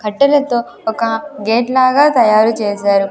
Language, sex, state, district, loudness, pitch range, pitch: Telugu, female, Andhra Pradesh, Sri Satya Sai, -13 LUFS, 215-260 Hz, 230 Hz